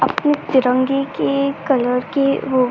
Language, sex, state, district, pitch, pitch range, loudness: Hindi, female, Uttar Pradesh, Ghazipur, 275 Hz, 255-275 Hz, -18 LUFS